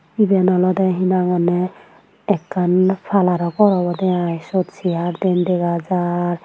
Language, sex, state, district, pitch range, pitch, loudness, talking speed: Chakma, female, Tripura, Unakoti, 175-185 Hz, 180 Hz, -18 LUFS, 120 wpm